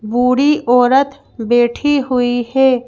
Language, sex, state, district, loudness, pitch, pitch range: Hindi, female, Madhya Pradesh, Bhopal, -14 LUFS, 250 Hz, 240-270 Hz